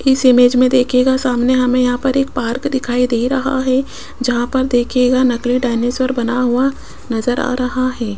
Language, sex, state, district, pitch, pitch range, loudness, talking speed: Hindi, female, Rajasthan, Jaipur, 250 Hz, 245-260 Hz, -15 LUFS, 185 wpm